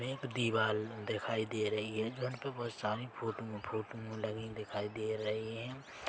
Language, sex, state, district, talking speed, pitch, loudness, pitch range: Hindi, male, Chhattisgarh, Bilaspur, 170 wpm, 110 Hz, -38 LUFS, 110-120 Hz